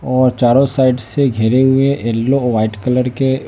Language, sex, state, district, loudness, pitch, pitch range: Hindi, male, Bihar, West Champaran, -14 LUFS, 130 Hz, 120-135 Hz